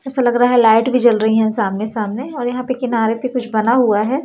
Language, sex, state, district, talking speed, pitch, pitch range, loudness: Hindi, female, Madhya Pradesh, Umaria, 280 wpm, 235 Hz, 220-250 Hz, -16 LUFS